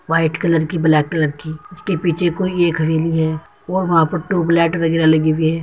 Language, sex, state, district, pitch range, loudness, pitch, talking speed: Hindi, male, Uttar Pradesh, Muzaffarnagar, 160-175 Hz, -17 LUFS, 165 Hz, 215 wpm